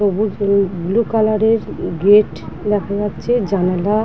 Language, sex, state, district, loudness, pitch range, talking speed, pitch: Bengali, female, West Bengal, Dakshin Dinajpur, -17 LUFS, 190-215 Hz, 150 wpm, 205 Hz